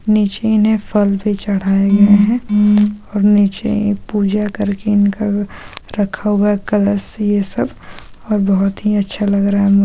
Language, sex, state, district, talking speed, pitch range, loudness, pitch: Hindi, female, Bihar, Supaul, 150 wpm, 200-210 Hz, -15 LUFS, 205 Hz